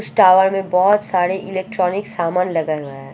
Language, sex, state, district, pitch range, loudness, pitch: Hindi, female, Odisha, Sambalpur, 170-195 Hz, -17 LUFS, 185 Hz